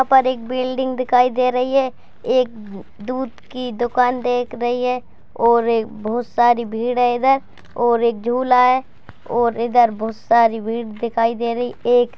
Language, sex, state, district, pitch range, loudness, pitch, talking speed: Hindi, female, Bihar, Gaya, 235-255 Hz, -18 LUFS, 245 Hz, 185 wpm